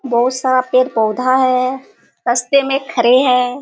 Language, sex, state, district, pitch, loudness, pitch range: Hindi, female, Bihar, Kishanganj, 255 Hz, -15 LUFS, 245-260 Hz